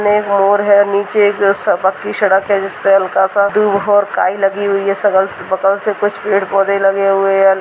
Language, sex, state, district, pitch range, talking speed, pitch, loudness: Hindi, female, Rajasthan, Churu, 195-205 Hz, 215 wpm, 200 Hz, -13 LUFS